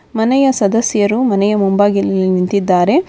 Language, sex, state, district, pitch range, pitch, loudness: Kannada, female, Karnataka, Bangalore, 195-230 Hz, 205 Hz, -13 LUFS